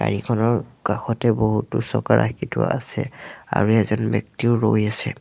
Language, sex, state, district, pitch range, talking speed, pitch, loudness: Assamese, male, Assam, Sonitpur, 105-115 Hz, 140 wpm, 110 Hz, -21 LUFS